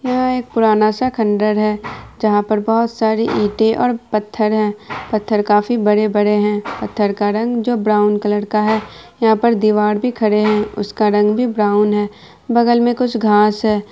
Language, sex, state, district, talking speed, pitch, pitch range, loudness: Hindi, female, Bihar, Araria, 175 wpm, 215 Hz, 210-230 Hz, -16 LUFS